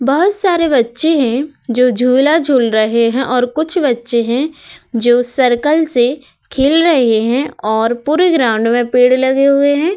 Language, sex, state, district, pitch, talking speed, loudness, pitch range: Hindi, female, Uttar Pradesh, Hamirpur, 260 Hz, 155 wpm, -13 LUFS, 240-300 Hz